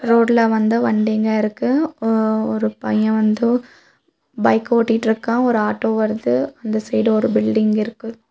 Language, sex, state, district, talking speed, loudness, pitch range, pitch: Tamil, female, Tamil Nadu, Nilgiris, 125 wpm, -18 LUFS, 215-230 Hz, 220 Hz